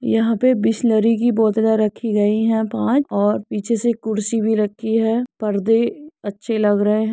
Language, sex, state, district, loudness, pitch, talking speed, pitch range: Hindi, female, Uttar Pradesh, Muzaffarnagar, -18 LUFS, 220 Hz, 175 wpm, 215-230 Hz